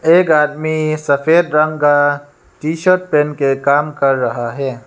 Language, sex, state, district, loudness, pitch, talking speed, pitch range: Hindi, male, Arunachal Pradesh, Lower Dibang Valley, -14 LUFS, 150 Hz, 160 wpm, 140-155 Hz